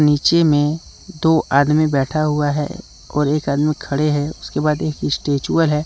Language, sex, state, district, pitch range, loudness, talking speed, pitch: Hindi, male, Jharkhand, Deoghar, 145-155 Hz, -18 LUFS, 175 wpm, 150 Hz